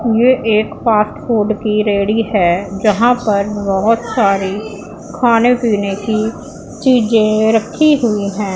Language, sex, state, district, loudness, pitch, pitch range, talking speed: Hindi, female, Punjab, Pathankot, -14 LUFS, 215 Hz, 205-230 Hz, 125 wpm